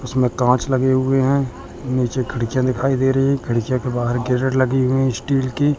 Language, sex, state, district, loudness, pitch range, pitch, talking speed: Hindi, male, Madhya Pradesh, Katni, -19 LUFS, 125-135 Hz, 130 Hz, 195 wpm